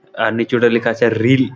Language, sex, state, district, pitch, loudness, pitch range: Bengali, male, West Bengal, Malda, 115 Hz, -16 LUFS, 115-120 Hz